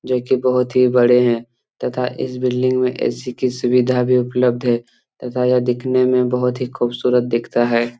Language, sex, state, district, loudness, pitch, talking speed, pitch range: Hindi, male, Jharkhand, Jamtara, -18 LUFS, 125 Hz, 185 wpm, 120-125 Hz